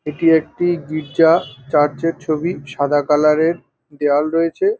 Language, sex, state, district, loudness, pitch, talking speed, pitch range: Bengali, male, West Bengal, North 24 Parganas, -17 LUFS, 155 Hz, 150 wpm, 145-165 Hz